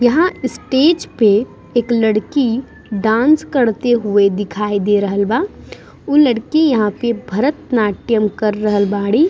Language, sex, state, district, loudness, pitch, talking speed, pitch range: Bhojpuri, female, Bihar, East Champaran, -16 LUFS, 230 Hz, 135 wpm, 210-270 Hz